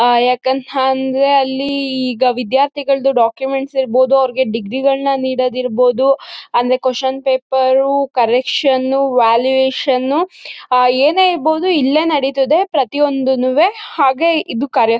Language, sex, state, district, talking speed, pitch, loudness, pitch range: Kannada, female, Karnataka, Mysore, 90 wpm, 265 Hz, -14 LUFS, 255-280 Hz